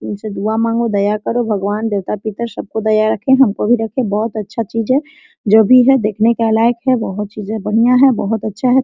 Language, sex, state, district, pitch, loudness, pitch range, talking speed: Hindi, female, Jharkhand, Sahebganj, 220 Hz, -15 LUFS, 215-240 Hz, 225 wpm